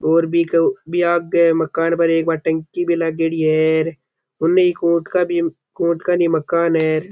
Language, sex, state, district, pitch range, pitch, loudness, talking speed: Rajasthani, male, Rajasthan, Churu, 160-170 Hz, 165 Hz, -18 LUFS, 170 wpm